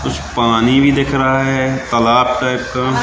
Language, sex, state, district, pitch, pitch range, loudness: Hindi, male, Madhya Pradesh, Katni, 125 Hz, 120-130 Hz, -14 LUFS